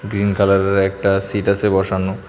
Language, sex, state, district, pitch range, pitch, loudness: Bengali, male, Tripura, West Tripura, 95-100 Hz, 100 Hz, -17 LUFS